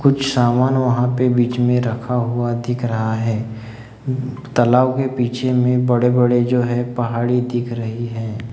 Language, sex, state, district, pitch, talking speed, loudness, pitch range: Hindi, male, Maharashtra, Gondia, 120 Hz, 170 wpm, -18 LUFS, 120-125 Hz